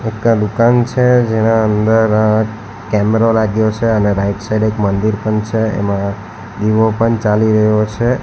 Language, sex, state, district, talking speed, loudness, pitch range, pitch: Gujarati, male, Gujarat, Valsad, 145 wpm, -14 LUFS, 105-115 Hz, 110 Hz